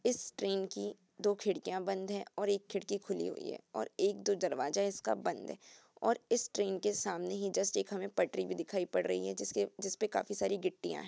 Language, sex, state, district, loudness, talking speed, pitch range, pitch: Hindi, female, Bihar, Purnia, -36 LUFS, 215 wpm, 185-205 Hz, 195 Hz